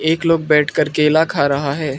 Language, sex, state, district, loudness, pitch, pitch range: Hindi, male, Arunachal Pradesh, Lower Dibang Valley, -16 LUFS, 155 Hz, 145-160 Hz